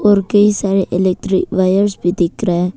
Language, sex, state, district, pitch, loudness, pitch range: Hindi, female, Arunachal Pradesh, Papum Pare, 190 Hz, -15 LUFS, 180-205 Hz